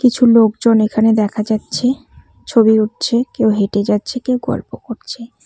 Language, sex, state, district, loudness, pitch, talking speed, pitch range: Bengali, female, West Bengal, Cooch Behar, -15 LUFS, 225 Hz, 155 wpm, 215-245 Hz